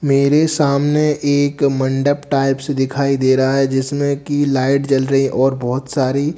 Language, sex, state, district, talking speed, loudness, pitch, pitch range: Hindi, male, Bihar, Katihar, 160 wpm, -16 LUFS, 140 Hz, 135-145 Hz